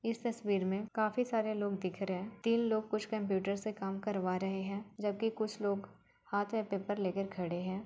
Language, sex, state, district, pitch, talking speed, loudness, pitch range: Hindi, female, Uttar Pradesh, Budaun, 205 Hz, 215 wpm, -36 LUFS, 195-215 Hz